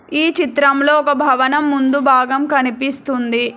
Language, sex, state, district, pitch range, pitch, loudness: Telugu, female, Telangana, Hyderabad, 260-290 Hz, 275 Hz, -15 LUFS